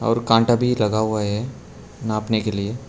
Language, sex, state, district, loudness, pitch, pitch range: Hindi, male, Arunachal Pradesh, Lower Dibang Valley, -20 LUFS, 110 Hz, 105-115 Hz